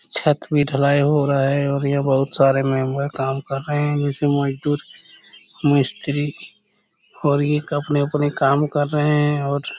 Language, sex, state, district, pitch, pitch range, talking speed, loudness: Hindi, male, Chhattisgarh, Korba, 145 Hz, 140-145 Hz, 160 wpm, -20 LUFS